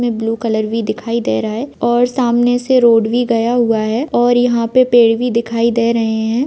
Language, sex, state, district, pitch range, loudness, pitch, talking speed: Hindi, female, Jharkhand, Jamtara, 225-245 Hz, -14 LUFS, 235 Hz, 230 wpm